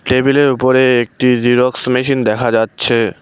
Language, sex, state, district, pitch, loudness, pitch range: Bengali, male, West Bengal, Cooch Behar, 125 Hz, -13 LUFS, 120-130 Hz